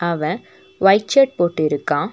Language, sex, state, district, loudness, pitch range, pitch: Tamil, female, Tamil Nadu, Nilgiris, -17 LUFS, 155-205 Hz, 175 Hz